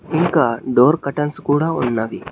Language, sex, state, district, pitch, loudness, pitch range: Telugu, male, Telangana, Hyderabad, 145 Hz, -17 LUFS, 125-160 Hz